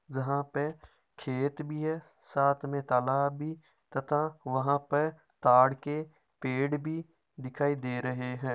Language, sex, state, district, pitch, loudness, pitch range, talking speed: Marwari, male, Rajasthan, Nagaur, 140 Hz, -31 LUFS, 130-150 Hz, 140 wpm